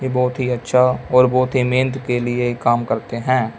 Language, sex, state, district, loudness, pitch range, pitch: Hindi, male, Punjab, Fazilka, -18 LUFS, 120-130 Hz, 125 Hz